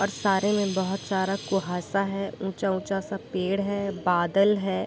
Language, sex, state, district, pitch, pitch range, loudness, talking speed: Hindi, female, Bihar, Sitamarhi, 195 Hz, 190-200 Hz, -26 LUFS, 170 wpm